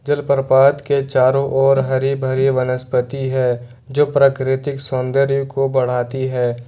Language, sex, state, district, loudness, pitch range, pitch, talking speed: Hindi, male, Jharkhand, Ranchi, -17 LUFS, 130-140 Hz, 135 Hz, 125 wpm